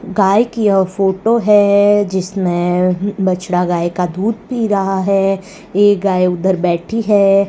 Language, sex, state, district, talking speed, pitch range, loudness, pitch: Hindi, female, Rajasthan, Bikaner, 145 wpm, 185-205 Hz, -14 LUFS, 195 Hz